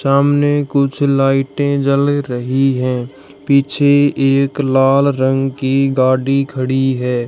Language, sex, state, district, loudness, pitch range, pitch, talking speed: Hindi, male, Haryana, Jhajjar, -14 LUFS, 130-140 Hz, 135 Hz, 115 wpm